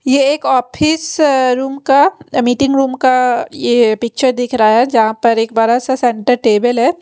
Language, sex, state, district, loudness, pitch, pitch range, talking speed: Hindi, female, Haryana, Rohtak, -13 LUFS, 250 Hz, 235-270 Hz, 180 wpm